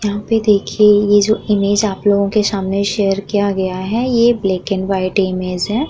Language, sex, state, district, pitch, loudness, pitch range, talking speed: Hindi, female, Uttar Pradesh, Muzaffarnagar, 205 Hz, -15 LUFS, 195-210 Hz, 195 wpm